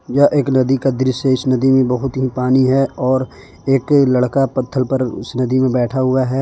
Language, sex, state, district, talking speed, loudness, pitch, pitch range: Hindi, male, Jharkhand, Palamu, 225 wpm, -16 LUFS, 130 Hz, 130-135 Hz